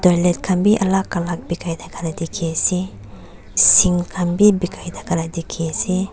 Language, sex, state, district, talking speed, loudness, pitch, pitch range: Nagamese, female, Nagaland, Dimapur, 155 wpm, -18 LUFS, 175 Hz, 165-185 Hz